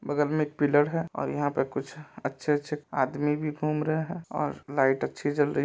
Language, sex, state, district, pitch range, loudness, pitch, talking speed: Maithili, male, Bihar, Supaul, 145-150 Hz, -28 LUFS, 150 Hz, 235 wpm